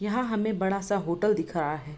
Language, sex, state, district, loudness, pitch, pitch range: Hindi, female, Bihar, East Champaran, -28 LUFS, 195 Hz, 170-210 Hz